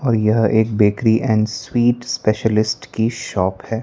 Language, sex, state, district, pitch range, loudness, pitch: Hindi, male, Chandigarh, Chandigarh, 110-115 Hz, -18 LUFS, 110 Hz